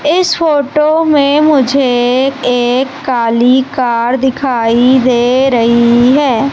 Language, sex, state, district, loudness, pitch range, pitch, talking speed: Hindi, male, Madhya Pradesh, Umaria, -10 LUFS, 245-280 Hz, 260 Hz, 100 wpm